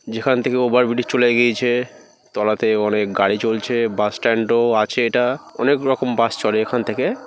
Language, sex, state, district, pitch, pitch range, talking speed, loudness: Bengali, male, West Bengal, North 24 Parganas, 120 Hz, 110-125 Hz, 175 wpm, -18 LUFS